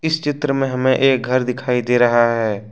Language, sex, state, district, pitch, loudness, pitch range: Hindi, male, Jharkhand, Ranchi, 125 Hz, -17 LUFS, 120-135 Hz